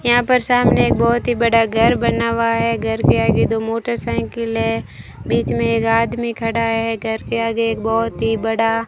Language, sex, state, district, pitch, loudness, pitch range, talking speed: Hindi, female, Rajasthan, Bikaner, 225 Hz, -17 LUFS, 220-230 Hz, 210 wpm